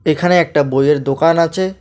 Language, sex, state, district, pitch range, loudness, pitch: Bengali, male, West Bengal, Alipurduar, 145-175 Hz, -14 LUFS, 160 Hz